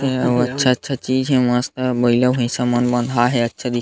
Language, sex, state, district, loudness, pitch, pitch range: Chhattisgarhi, male, Chhattisgarh, Sarguja, -18 LUFS, 125 Hz, 120-130 Hz